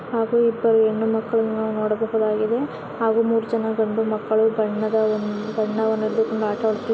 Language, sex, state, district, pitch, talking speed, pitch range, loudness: Kannada, female, Karnataka, Bellary, 220 Hz, 110 wpm, 215-225 Hz, -21 LUFS